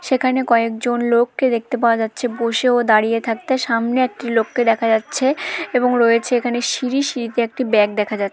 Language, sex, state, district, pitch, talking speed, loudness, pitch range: Bengali, female, West Bengal, Malda, 240 Hz, 175 wpm, -18 LUFS, 230-255 Hz